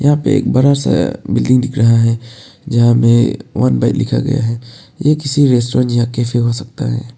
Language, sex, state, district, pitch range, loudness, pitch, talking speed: Hindi, male, Arunachal Pradesh, Papum Pare, 120-135 Hz, -14 LUFS, 120 Hz, 200 wpm